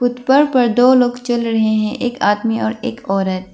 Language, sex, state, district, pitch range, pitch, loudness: Hindi, female, Arunachal Pradesh, Lower Dibang Valley, 215-245 Hz, 240 Hz, -16 LUFS